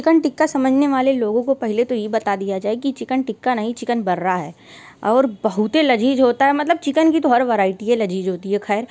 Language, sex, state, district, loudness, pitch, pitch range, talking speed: Hindi, female, Uttar Pradesh, Varanasi, -18 LUFS, 240 Hz, 210-270 Hz, 245 wpm